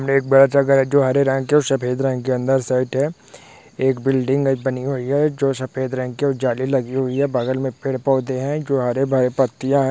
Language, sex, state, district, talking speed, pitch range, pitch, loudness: Hindi, male, West Bengal, Dakshin Dinajpur, 230 wpm, 130-135 Hz, 135 Hz, -19 LUFS